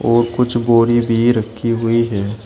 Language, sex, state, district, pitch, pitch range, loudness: Hindi, male, Uttar Pradesh, Shamli, 115 Hz, 115-120 Hz, -15 LUFS